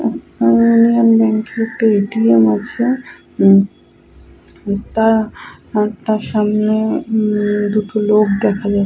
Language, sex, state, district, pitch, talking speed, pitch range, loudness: Bengali, female, West Bengal, Purulia, 215 Hz, 120 wpm, 205-225 Hz, -15 LUFS